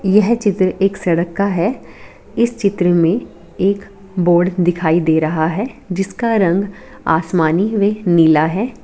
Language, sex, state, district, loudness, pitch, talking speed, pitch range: Hindi, female, Bihar, Darbhanga, -16 LUFS, 190 Hz, 140 wpm, 170-200 Hz